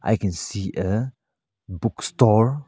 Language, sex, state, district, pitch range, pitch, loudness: English, male, Arunachal Pradesh, Lower Dibang Valley, 100-120 Hz, 110 Hz, -23 LUFS